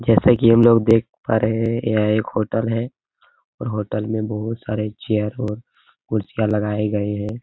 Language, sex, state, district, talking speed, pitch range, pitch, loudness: Hindi, male, Uttar Pradesh, Hamirpur, 185 wpm, 105-115 Hz, 110 Hz, -20 LUFS